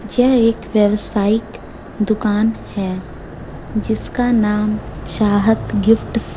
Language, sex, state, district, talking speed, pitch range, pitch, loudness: Hindi, female, Chhattisgarh, Raipur, 95 wpm, 205-225 Hz, 215 Hz, -17 LUFS